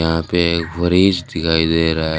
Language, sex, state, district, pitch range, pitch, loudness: Hindi, male, Rajasthan, Bikaner, 80-85 Hz, 80 Hz, -16 LUFS